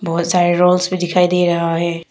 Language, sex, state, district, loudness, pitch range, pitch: Hindi, female, Arunachal Pradesh, Papum Pare, -15 LUFS, 170-180 Hz, 175 Hz